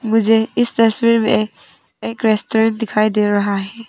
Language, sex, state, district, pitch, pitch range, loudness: Hindi, female, Arunachal Pradesh, Papum Pare, 225 Hz, 215-225 Hz, -16 LUFS